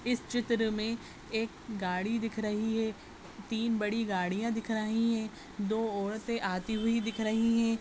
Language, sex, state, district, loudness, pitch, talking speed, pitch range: Hindi, female, Uttar Pradesh, Budaun, -32 LUFS, 225 Hz, 160 wpm, 215-230 Hz